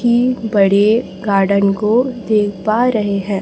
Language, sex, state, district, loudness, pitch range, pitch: Hindi, female, Chhattisgarh, Raipur, -15 LUFS, 200-235 Hz, 210 Hz